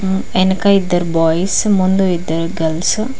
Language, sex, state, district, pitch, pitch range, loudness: Telugu, female, Telangana, Mahabubabad, 185 Hz, 170-195 Hz, -15 LUFS